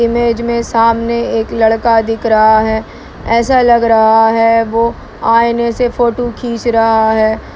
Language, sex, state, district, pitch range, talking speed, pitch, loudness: Hindi, male, Bihar, Kishanganj, 225-235 Hz, 150 wpm, 230 Hz, -12 LUFS